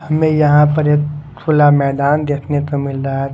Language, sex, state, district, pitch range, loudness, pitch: Hindi, male, Odisha, Khordha, 140-150 Hz, -14 LUFS, 145 Hz